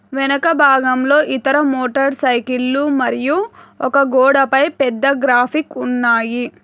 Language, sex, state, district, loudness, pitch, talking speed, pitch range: Telugu, female, Telangana, Hyderabad, -15 LUFS, 270 Hz, 100 wpm, 255-280 Hz